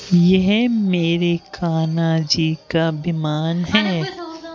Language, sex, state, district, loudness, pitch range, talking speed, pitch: Hindi, female, Madhya Pradesh, Bhopal, -19 LUFS, 165-195 Hz, 90 wpm, 170 Hz